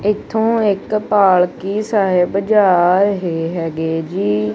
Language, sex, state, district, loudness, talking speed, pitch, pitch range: Punjabi, male, Punjab, Kapurthala, -16 LUFS, 105 wpm, 195 Hz, 175-210 Hz